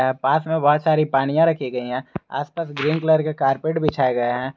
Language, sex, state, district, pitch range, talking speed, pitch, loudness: Hindi, male, Jharkhand, Garhwa, 130-160 Hz, 235 wpm, 150 Hz, -20 LUFS